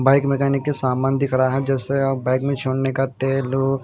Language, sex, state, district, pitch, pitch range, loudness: Hindi, male, Haryana, Jhajjar, 135 Hz, 130-135 Hz, -20 LUFS